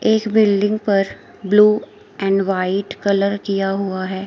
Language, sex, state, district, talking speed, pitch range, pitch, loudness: Hindi, female, Himachal Pradesh, Shimla, 140 wpm, 195-210 Hz, 200 Hz, -18 LUFS